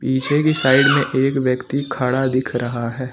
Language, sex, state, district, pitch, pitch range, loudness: Hindi, male, Uttar Pradesh, Lucknow, 130 Hz, 125-135 Hz, -18 LUFS